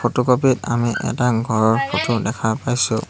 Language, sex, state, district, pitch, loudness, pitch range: Assamese, male, Assam, Hailakandi, 120 Hz, -19 LUFS, 110-125 Hz